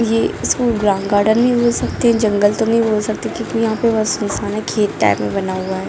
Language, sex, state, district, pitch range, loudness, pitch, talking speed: Hindi, female, Jharkhand, Jamtara, 205-230 Hz, -16 LUFS, 215 Hz, 255 wpm